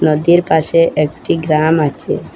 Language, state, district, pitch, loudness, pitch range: Bengali, Assam, Hailakandi, 160 Hz, -14 LUFS, 155-165 Hz